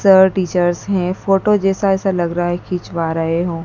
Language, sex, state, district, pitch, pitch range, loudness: Hindi, female, Madhya Pradesh, Dhar, 180 Hz, 175-195 Hz, -17 LUFS